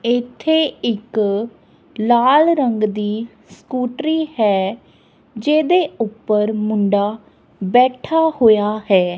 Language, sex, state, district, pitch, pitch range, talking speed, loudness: Punjabi, female, Punjab, Kapurthala, 230 Hz, 210-265 Hz, 85 wpm, -17 LUFS